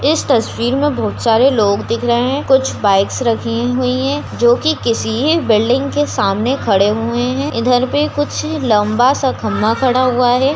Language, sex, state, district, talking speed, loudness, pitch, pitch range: Hindi, female, Bihar, Begusarai, 180 wpm, -15 LUFS, 250 Hz, 225-270 Hz